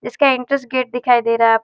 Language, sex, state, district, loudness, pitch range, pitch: Hindi, female, Maharashtra, Nagpur, -16 LUFS, 235-260 Hz, 250 Hz